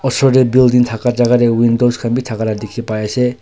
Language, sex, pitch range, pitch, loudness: Nagamese, male, 115-125 Hz, 120 Hz, -14 LUFS